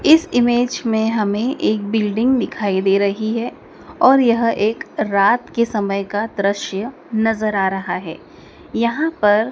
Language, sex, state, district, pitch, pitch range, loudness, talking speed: Hindi, female, Madhya Pradesh, Dhar, 220 Hz, 205-245 Hz, -18 LUFS, 150 wpm